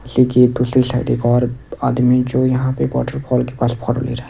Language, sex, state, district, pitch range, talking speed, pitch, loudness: Hindi, male, Odisha, Nuapada, 120-125 Hz, 225 wpm, 125 Hz, -17 LUFS